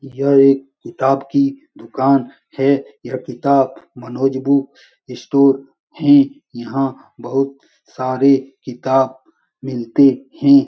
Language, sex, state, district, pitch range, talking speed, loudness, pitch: Hindi, male, Bihar, Supaul, 130-140 Hz, 120 wpm, -17 LUFS, 135 Hz